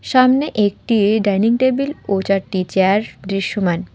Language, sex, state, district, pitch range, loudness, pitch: Bengali, female, West Bengal, Alipurduar, 195-235 Hz, -17 LUFS, 205 Hz